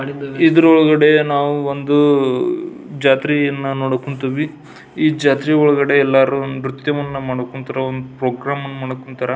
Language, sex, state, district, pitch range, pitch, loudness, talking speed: Kannada, male, Karnataka, Belgaum, 135-150 Hz, 140 Hz, -16 LUFS, 110 wpm